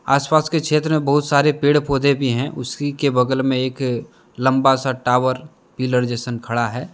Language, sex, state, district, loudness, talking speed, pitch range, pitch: Hindi, male, Jharkhand, Deoghar, -19 LUFS, 190 wpm, 125-145 Hz, 130 Hz